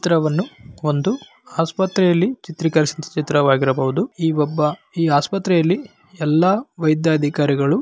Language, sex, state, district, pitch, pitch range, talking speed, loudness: Kannada, male, Karnataka, Bellary, 160 Hz, 150-185 Hz, 85 wpm, -19 LUFS